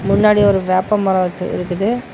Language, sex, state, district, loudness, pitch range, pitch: Tamil, male, Tamil Nadu, Namakkal, -16 LUFS, 185-210 Hz, 195 Hz